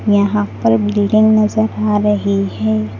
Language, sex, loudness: Hindi, female, -15 LUFS